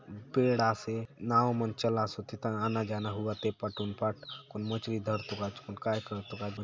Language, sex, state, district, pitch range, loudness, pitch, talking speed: Halbi, male, Chhattisgarh, Bastar, 105-115 Hz, -33 LUFS, 110 Hz, 210 wpm